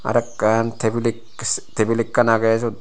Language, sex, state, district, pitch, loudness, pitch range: Chakma, male, Tripura, Unakoti, 115 Hz, -20 LUFS, 110-115 Hz